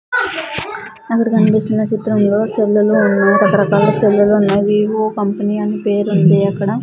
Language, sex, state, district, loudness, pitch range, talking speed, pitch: Telugu, female, Andhra Pradesh, Sri Satya Sai, -14 LUFS, 200-215 Hz, 105 wpm, 210 Hz